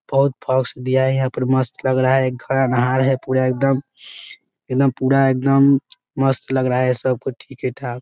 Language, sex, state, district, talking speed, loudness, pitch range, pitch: Hindi, male, Bihar, Muzaffarpur, 200 wpm, -18 LUFS, 130-135 Hz, 130 Hz